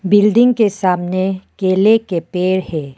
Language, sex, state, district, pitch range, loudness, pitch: Hindi, female, Arunachal Pradesh, Papum Pare, 180-205 Hz, -15 LUFS, 185 Hz